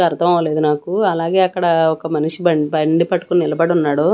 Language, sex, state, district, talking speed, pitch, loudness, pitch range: Telugu, female, Andhra Pradesh, Annamaya, 160 wpm, 165 Hz, -16 LUFS, 155-175 Hz